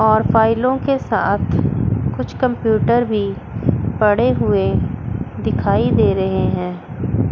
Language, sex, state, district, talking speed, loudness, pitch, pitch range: Hindi, female, Chandigarh, Chandigarh, 105 wpm, -17 LUFS, 220 Hz, 180-240 Hz